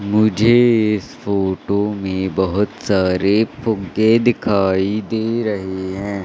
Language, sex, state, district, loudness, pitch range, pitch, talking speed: Hindi, male, Madhya Pradesh, Katni, -17 LUFS, 95-110 Hz, 100 Hz, 105 wpm